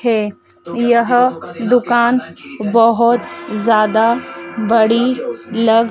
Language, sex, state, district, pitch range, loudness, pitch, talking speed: Hindi, female, Madhya Pradesh, Dhar, 220-240 Hz, -15 LUFS, 230 Hz, 70 wpm